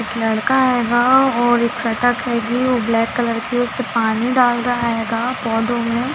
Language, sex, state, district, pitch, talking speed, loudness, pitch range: Hindi, female, Chhattisgarh, Rajnandgaon, 240 Hz, 175 wpm, -17 LUFS, 230-250 Hz